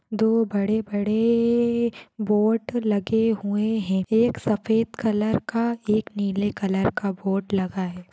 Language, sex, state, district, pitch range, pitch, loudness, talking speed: Hindi, female, Maharashtra, Pune, 200-225 Hz, 215 Hz, -23 LUFS, 135 wpm